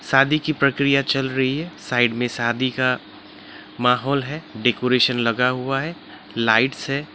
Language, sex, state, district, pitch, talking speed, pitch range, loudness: Hindi, male, West Bengal, Alipurduar, 130 Hz, 150 wpm, 125-140 Hz, -20 LUFS